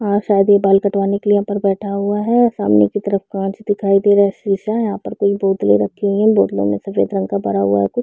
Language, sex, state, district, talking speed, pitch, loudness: Hindi, female, Chhattisgarh, Rajnandgaon, 275 wpm, 200 Hz, -16 LUFS